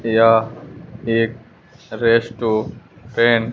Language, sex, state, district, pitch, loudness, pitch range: Hindi, male, Bihar, West Champaran, 115 Hz, -18 LUFS, 110-115 Hz